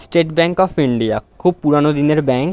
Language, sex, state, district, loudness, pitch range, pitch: Bengali, male, West Bengal, Dakshin Dinajpur, -16 LUFS, 135-170 Hz, 150 Hz